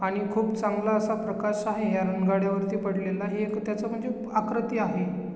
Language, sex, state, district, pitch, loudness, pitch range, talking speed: Marathi, male, Maharashtra, Chandrapur, 210 Hz, -28 LUFS, 195-215 Hz, 180 wpm